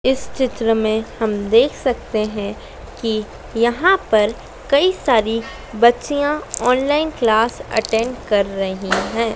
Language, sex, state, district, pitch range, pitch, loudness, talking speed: Hindi, female, Madhya Pradesh, Dhar, 220-260 Hz, 230 Hz, -18 LUFS, 120 wpm